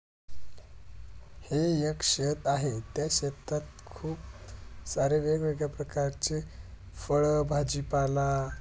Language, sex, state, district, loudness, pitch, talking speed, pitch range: Marathi, male, Maharashtra, Dhule, -30 LUFS, 140 Hz, 95 wpm, 95-150 Hz